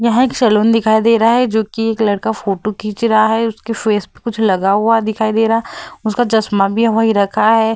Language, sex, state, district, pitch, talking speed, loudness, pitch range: Hindi, female, Bihar, Vaishali, 220 Hz, 240 wpm, -14 LUFS, 215-230 Hz